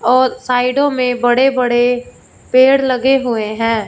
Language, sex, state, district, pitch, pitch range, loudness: Hindi, female, Punjab, Fazilka, 250 Hz, 240-260 Hz, -14 LUFS